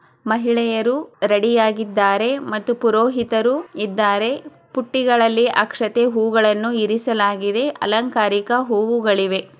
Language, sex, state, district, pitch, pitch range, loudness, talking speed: Kannada, female, Karnataka, Chamarajanagar, 225 Hz, 215-240 Hz, -18 LUFS, 70 wpm